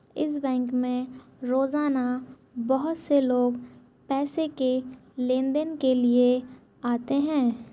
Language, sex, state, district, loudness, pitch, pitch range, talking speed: Hindi, female, Chhattisgarh, Rajnandgaon, -26 LUFS, 255 Hz, 250-280 Hz, 115 wpm